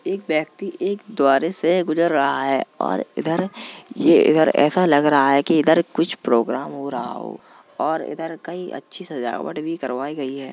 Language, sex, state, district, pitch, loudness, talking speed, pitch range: Hindi, male, Uttar Pradesh, Jalaun, 160 Hz, -20 LUFS, 170 wpm, 140-175 Hz